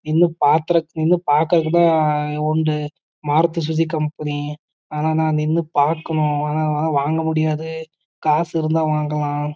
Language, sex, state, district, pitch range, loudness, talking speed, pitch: Tamil, male, Karnataka, Chamarajanagar, 150-160 Hz, -19 LUFS, 100 wpm, 155 Hz